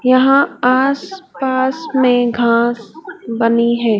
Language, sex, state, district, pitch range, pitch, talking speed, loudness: Hindi, female, Madhya Pradesh, Dhar, 235-275 Hz, 255 Hz, 105 wpm, -14 LUFS